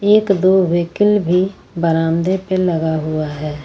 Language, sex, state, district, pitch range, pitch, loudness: Hindi, female, Jharkhand, Ranchi, 160-190 Hz, 175 Hz, -16 LUFS